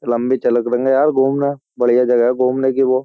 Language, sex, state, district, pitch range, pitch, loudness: Hindi, male, Uttar Pradesh, Jyotiba Phule Nagar, 120-135 Hz, 130 Hz, -16 LUFS